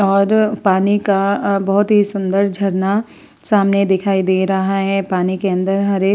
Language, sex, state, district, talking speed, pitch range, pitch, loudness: Hindi, female, Uttar Pradesh, Muzaffarnagar, 165 wpm, 190-200 Hz, 195 Hz, -16 LUFS